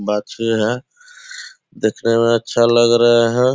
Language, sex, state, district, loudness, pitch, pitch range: Hindi, male, Bihar, Purnia, -16 LUFS, 120 Hz, 115-130 Hz